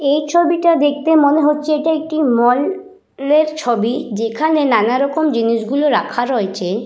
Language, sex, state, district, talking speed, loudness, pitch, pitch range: Bengali, female, West Bengal, Purulia, 150 wpm, -15 LUFS, 290 Hz, 240-310 Hz